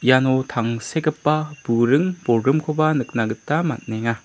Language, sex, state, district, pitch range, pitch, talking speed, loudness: Garo, male, Meghalaya, South Garo Hills, 115-155 Hz, 130 Hz, 100 wpm, -21 LUFS